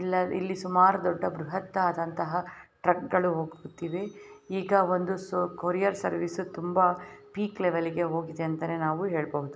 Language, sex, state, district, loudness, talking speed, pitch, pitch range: Kannada, female, Karnataka, Belgaum, -29 LUFS, 115 wpm, 180 Hz, 165-190 Hz